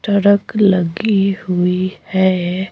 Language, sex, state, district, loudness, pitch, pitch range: Hindi, female, Bihar, Patna, -16 LUFS, 190 Hz, 180-200 Hz